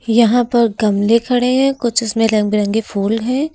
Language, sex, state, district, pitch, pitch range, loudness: Hindi, female, Uttar Pradesh, Lucknow, 230 Hz, 215-245 Hz, -15 LUFS